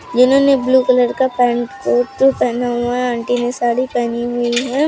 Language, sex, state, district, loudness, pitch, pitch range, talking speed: Hindi, female, Uttar Pradesh, Lucknow, -16 LUFS, 245 Hz, 240-260 Hz, 195 wpm